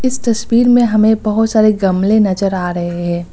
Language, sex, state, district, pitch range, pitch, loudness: Hindi, female, Uttar Pradesh, Lucknow, 185-225 Hz, 215 Hz, -13 LUFS